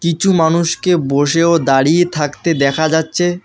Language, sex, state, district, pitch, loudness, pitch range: Bengali, male, West Bengal, Alipurduar, 165 Hz, -14 LUFS, 150-170 Hz